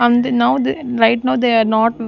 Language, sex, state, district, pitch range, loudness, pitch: English, female, Maharashtra, Gondia, 230-250 Hz, -15 LUFS, 240 Hz